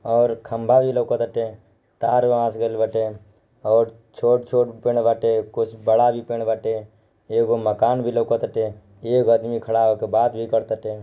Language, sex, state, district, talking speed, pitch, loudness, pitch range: Bhojpuri, male, Bihar, Gopalganj, 180 wpm, 115 Hz, -21 LUFS, 110-120 Hz